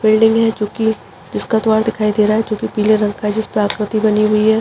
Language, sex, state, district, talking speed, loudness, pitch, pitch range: Hindi, female, Chhattisgarh, Rajnandgaon, 245 wpm, -15 LUFS, 215 Hz, 210-220 Hz